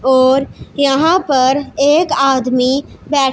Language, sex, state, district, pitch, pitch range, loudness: Hindi, female, Punjab, Pathankot, 275 Hz, 260-285 Hz, -13 LUFS